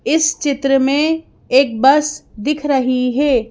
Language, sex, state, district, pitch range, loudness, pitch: Hindi, female, Madhya Pradesh, Bhopal, 260-295 Hz, -16 LUFS, 275 Hz